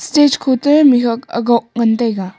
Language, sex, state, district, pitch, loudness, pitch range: Wancho, female, Arunachal Pradesh, Longding, 240 Hz, -13 LUFS, 230-285 Hz